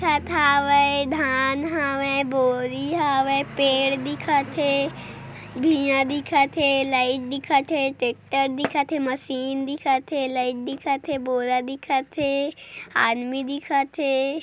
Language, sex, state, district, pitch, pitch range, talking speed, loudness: Hindi, female, Chhattisgarh, Korba, 275 Hz, 265-285 Hz, 125 wpm, -22 LUFS